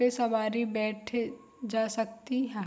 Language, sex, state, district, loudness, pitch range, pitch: Hindi, female, Bihar, Saharsa, -31 LUFS, 220-240 Hz, 225 Hz